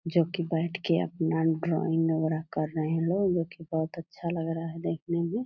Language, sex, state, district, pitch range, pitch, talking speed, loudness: Hindi, female, Bihar, Purnia, 160-170 Hz, 165 Hz, 210 wpm, -29 LUFS